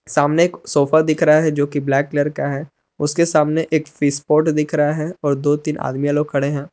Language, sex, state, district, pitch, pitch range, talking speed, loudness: Hindi, male, Jharkhand, Palamu, 150 Hz, 145-155 Hz, 230 wpm, -18 LUFS